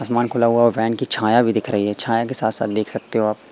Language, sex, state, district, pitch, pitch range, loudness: Hindi, female, Madhya Pradesh, Katni, 115 Hz, 110-120 Hz, -18 LUFS